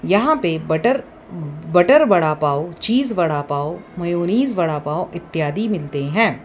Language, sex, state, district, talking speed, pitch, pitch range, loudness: Hindi, female, Gujarat, Valsad, 140 wpm, 175 Hz, 155-220 Hz, -18 LUFS